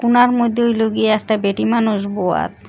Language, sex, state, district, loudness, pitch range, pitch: Bengali, female, Assam, Hailakandi, -16 LUFS, 210-235 Hz, 220 Hz